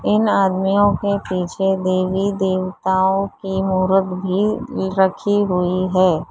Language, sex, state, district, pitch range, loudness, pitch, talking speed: Hindi, female, Uttar Pradesh, Lalitpur, 185-200 Hz, -18 LUFS, 190 Hz, 115 wpm